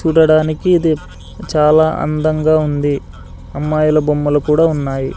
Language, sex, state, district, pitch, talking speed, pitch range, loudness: Telugu, male, Andhra Pradesh, Sri Satya Sai, 150 Hz, 105 wpm, 145-155 Hz, -14 LUFS